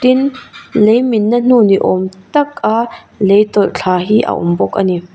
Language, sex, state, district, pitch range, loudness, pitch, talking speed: Mizo, female, Mizoram, Aizawl, 190-240 Hz, -13 LUFS, 210 Hz, 165 wpm